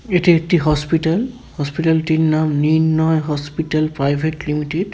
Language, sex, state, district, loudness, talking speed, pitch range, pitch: Bengali, male, West Bengal, Paschim Medinipur, -17 LUFS, 135 wpm, 150-165 Hz, 160 Hz